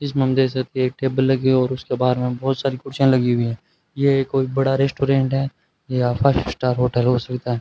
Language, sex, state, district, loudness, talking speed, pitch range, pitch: Hindi, male, Rajasthan, Bikaner, -20 LUFS, 220 wpm, 125-135 Hz, 130 Hz